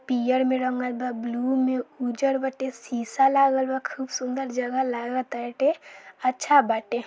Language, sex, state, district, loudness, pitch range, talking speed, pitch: Bhojpuri, female, Bihar, Saran, -25 LUFS, 245-265 Hz, 155 wpm, 255 Hz